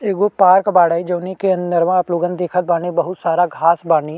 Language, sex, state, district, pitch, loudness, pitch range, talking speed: Bhojpuri, male, Uttar Pradesh, Deoria, 175 Hz, -16 LUFS, 170-185 Hz, 215 wpm